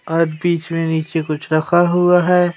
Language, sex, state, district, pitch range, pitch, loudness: Hindi, female, Madhya Pradesh, Umaria, 160-175 Hz, 165 Hz, -16 LUFS